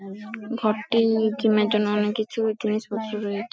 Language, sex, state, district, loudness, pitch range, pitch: Bengali, female, West Bengal, Paschim Medinipur, -24 LUFS, 210-220 Hz, 215 Hz